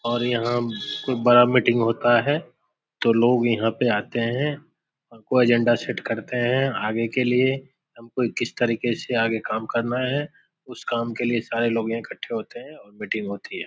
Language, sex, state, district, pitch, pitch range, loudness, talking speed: Hindi, male, Bihar, Samastipur, 120 Hz, 115-125 Hz, -23 LUFS, 185 wpm